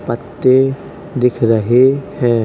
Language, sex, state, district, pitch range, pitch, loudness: Hindi, male, Uttar Pradesh, Jalaun, 120-135 Hz, 125 Hz, -14 LUFS